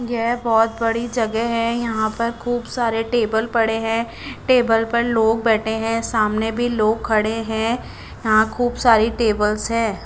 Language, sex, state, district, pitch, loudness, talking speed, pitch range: Hindi, female, Chandigarh, Chandigarh, 225 Hz, -19 LUFS, 160 wpm, 220-235 Hz